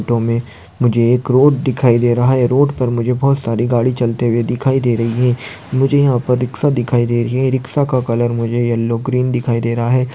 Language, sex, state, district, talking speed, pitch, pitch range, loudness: Hindi, male, Maharashtra, Aurangabad, 230 wpm, 120 Hz, 120-130 Hz, -15 LUFS